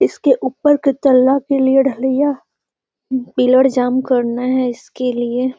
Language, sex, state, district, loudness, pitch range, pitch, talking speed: Magahi, female, Bihar, Gaya, -15 LUFS, 250-270 Hz, 260 Hz, 140 wpm